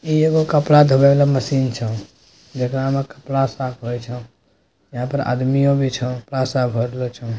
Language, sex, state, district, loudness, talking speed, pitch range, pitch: Maithili, male, Bihar, Bhagalpur, -18 LUFS, 180 wpm, 125-140 Hz, 130 Hz